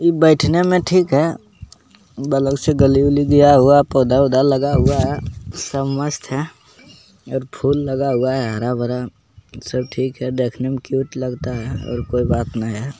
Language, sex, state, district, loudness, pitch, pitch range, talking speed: Magahi, male, Bihar, Jamui, -17 LUFS, 135 Hz, 125-140 Hz, 170 wpm